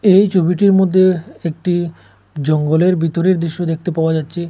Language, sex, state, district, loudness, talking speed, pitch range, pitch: Bengali, male, Assam, Hailakandi, -15 LUFS, 135 wpm, 165-185 Hz, 175 Hz